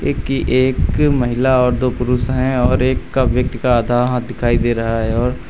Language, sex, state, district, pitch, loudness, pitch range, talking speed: Hindi, male, Uttar Pradesh, Lucknow, 125 Hz, -16 LUFS, 120-130 Hz, 220 wpm